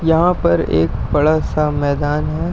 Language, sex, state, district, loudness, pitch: Hindi, male, Uttar Pradesh, Etah, -16 LUFS, 145 Hz